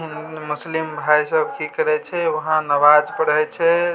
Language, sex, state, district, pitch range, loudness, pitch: Maithili, male, Bihar, Samastipur, 150-165 Hz, -19 LUFS, 155 Hz